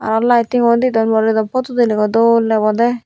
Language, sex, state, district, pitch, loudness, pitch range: Chakma, female, Tripura, Unakoti, 230 Hz, -14 LUFS, 220-240 Hz